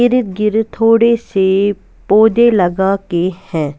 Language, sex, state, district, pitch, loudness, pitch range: Hindi, female, Punjab, Kapurthala, 205 Hz, -13 LUFS, 190-225 Hz